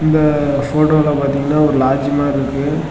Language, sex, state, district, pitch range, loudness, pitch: Tamil, male, Tamil Nadu, Namakkal, 140-150 Hz, -15 LUFS, 145 Hz